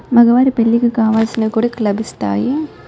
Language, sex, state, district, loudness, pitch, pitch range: Telugu, female, Telangana, Karimnagar, -15 LUFS, 230 Hz, 220-240 Hz